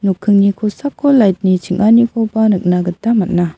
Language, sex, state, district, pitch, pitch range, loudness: Garo, female, Meghalaya, South Garo Hills, 205 Hz, 185-225 Hz, -13 LUFS